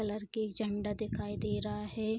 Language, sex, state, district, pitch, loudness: Hindi, female, Bihar, Vaishali, 210 Hz, -36 LUFS